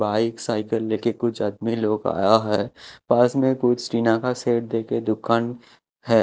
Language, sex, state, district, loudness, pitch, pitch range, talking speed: Hindi, male, Chhattisgarh, Raipur, -22 LUFS, 115 Hz, 110-120 Hz, 185 wpm